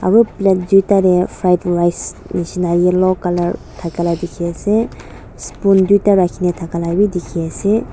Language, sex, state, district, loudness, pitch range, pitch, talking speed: Nagamese, female, Nagaland, Dimapur, -15 LUFS, 175-195 Hz, 180 Hz, 160 wpm